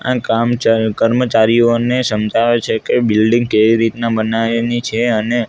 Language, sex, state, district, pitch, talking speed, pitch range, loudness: Gujarati, male, Gujarat, Gandhinagar, 115 Hz, 130 wpm, 110-120 Hz, -14 LUFS